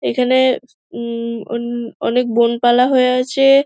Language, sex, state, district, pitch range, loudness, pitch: Bengali, female, West Bengal, Dakshin Dinajpur, 235-255 Hz, -16 LUFS, 245 Hz